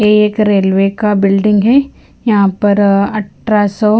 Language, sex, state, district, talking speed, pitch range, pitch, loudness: Hindi, female, Himachal Pradesh, Shimla, 135 wpm, 200-215 Hz, 210 Hz, -12 LUFS